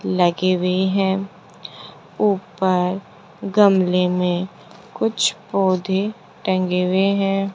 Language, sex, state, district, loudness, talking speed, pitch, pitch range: Hindi, female, Rajasthan, Jaipur, -19 LUFS, 85 wpm, 190 Hz, 180-195 Hz